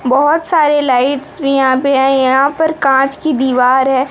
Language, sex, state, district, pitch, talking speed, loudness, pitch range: Hindi, female, Odisha, Sambalpur, 270 Hz, 190 wpm, -12 LUFS, 265-295 Hz